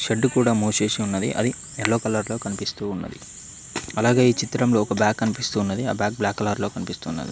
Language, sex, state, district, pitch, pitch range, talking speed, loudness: Telugu, male, Telangana, Mahabubabad, 110 Hz, 105-115 Hz, 190 wpm, -23 LUFS